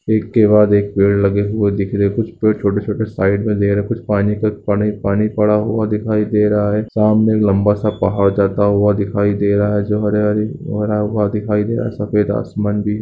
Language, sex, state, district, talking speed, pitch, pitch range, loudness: Hindi, male, Bihar, Lakhisarai, 240 wpm, 105 Hz, 100-105 Hz, -16 LUFS